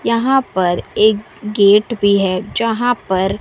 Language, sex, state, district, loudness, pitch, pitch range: Hindi, female, Bihar, West Champaran, -15 LUFS, 210 Hz, 190-230 Hz